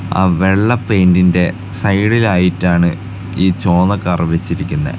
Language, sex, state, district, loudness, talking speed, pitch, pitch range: Malayalam, male, Kerala, Kasaragod, -14 LUFS, 95 wpm, 95 Hz, 90-100 Hz